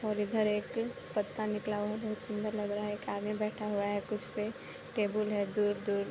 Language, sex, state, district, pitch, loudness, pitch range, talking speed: Hindi, female, Chhattisgarh, Bilaspur, 210 Hz, -35 LUFS, 205-215 Hz, 215 wpm